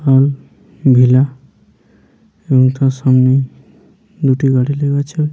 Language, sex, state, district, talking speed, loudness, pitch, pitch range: Bengali, male, West Bengal, Paschim Medinipur, 90 wpm, -13 LUFS, 135 Hz, 130-150 Hz